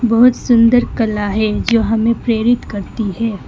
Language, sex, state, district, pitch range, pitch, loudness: Hindi, female, West Bengal, Alipurduar, 215-235 Hz, 230 Hz, -14 LUFS